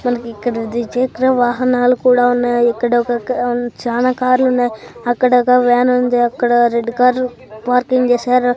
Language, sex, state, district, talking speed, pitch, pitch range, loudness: Telugu, female, Andhra Pradesh, Sri Satya Sai, 140 wpm, 245 Hz, 240-250 Hz, -15 LUFS